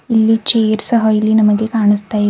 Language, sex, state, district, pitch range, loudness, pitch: Kannada, female, Karnataka, Bidar, 210-225 Hz, -13 LUFS, 220 Hz